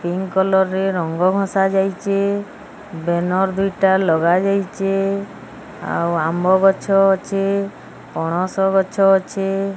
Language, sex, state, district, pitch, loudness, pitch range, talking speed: Odia, female, Odisha, Sambalpur, 195 Hz, -18 LUFS, 185-195 Hz, 100 wpm